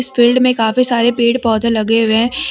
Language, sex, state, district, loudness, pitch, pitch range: Hindi, female, Jharkhand, Deoghar, -13 LUFS, 235 Hz, 225-250 Hz